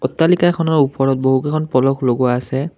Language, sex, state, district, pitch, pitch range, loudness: Assamese, male, Assam, Kamrup Metropolitan, 135 Hz, 130-155 Hz, -16 LUFS